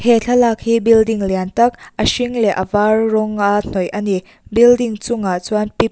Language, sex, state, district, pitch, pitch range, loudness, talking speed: Mizo, female, Mizoram, Aizawl, 220 Hz, 205-235 Hz, -16 LUFS, 195 wpm